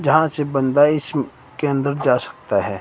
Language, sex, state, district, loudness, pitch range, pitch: Hindi, male, Himachal Pradesh, Shimla, -19 LUFS, 135-150 Hz, 145 Hz